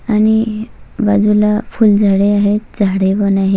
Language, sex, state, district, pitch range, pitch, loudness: Marathi, female, Maharashtra, Solapur, 200-215 Hz, 205 Hz, -13 LUFS